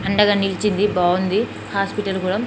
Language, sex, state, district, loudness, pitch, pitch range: Telugu, female, Telangana, Nalgonda, -19 LUFS, 195 Hz, 190-210 Hz